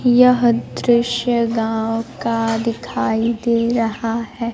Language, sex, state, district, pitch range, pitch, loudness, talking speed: Hindi, female, Bihar, Kaimur, 225-235 Hz, 230 Hz, -18 LUFS, 105 wpm